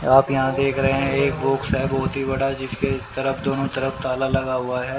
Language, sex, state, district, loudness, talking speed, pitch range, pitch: Hindi, male, Haryana, Rohtak, -22 LUFS, 215 wpm, 130-135 Hz, 135 Hz